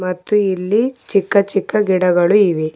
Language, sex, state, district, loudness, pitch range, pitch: Kannada, female, Karnataka, Bidar, -15 LUFS, 180-210 Hz, 195 Hz